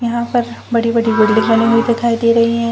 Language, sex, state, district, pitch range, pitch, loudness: Hindi, female, Chhattisgarh, Bilaspur, 230-235 Hz, 230 Hz, -14 LUFS